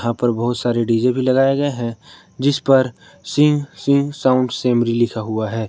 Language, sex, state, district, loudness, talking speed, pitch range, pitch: Hindi, male, Jharkhand, Garhwa, -18 LUFS, 200 wpm, 115-140 Hz, 125 Hz